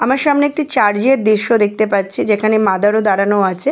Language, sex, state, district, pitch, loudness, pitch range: Bengali, female, West Bengal, Jalpaiguri, 215 Hz, -14 LUFS, 205-255 Hz